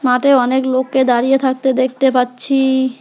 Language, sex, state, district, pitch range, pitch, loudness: Bengali, female, West Bengal, Alipurduar, 255-265 Hz, 260 Hz, -14 LUFS